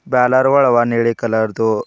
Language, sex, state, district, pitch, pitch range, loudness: Kannada, male, Karnataka, Bidar, 115 Hz, 110-125 Hz, -15 LUFS